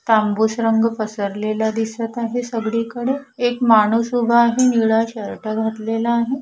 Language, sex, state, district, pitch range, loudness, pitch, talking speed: Marathi, female, Maharashtra, Washim, 220-235 Hz, -19 LUFS, 225 Hz, 130 wpm